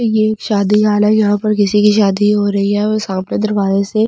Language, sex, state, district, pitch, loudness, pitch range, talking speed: Hindi, female, Delhi, New Delhi, 210 Hz, -14 LUFS, 205-215 Hz, 280 wpm